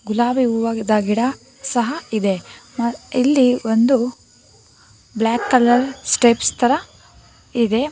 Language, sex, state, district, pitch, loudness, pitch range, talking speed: Kannada, female, Karnataka, Bangalore, 240 Hz, -18 LUFS, 225-255 Hz, 105 wpm